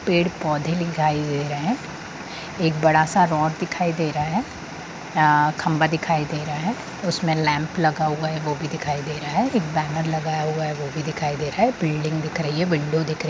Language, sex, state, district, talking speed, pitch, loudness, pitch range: Hindi, female, Bihar, Sitamarhi, 215 wpm, 155 Hz, -22 LUFS, 150-165 Hz